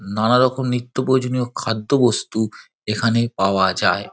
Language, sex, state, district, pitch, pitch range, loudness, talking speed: Bengali, male, West Bengal, Dakshin Dinajpur, 120 Hz, 105-125 Hz, -19 LUFS, 130 wpm